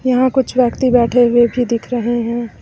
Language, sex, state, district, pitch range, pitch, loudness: Hindi, female, Uttar Pradesh, Lucknow, 235-250 Hz, 245 Hz, -15 LUFS